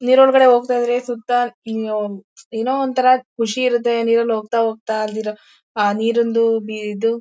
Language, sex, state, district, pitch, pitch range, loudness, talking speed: Kannada, female, Karnataka, Mysore, 230 Hz, 220-245 Hz, -18 LUFS, 110 wpm